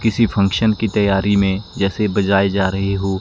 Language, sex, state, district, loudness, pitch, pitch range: Hindi, male, Himachal Pradesh, Shimla, -17 LUFS, 100 Hz, 95-105 Hz